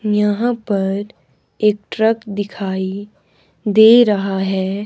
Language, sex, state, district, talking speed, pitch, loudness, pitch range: Hindi, male, Himachal Pradesh, Shimla, 100 wpm, 205 Hz, -16 LUFS, 195-215 Hz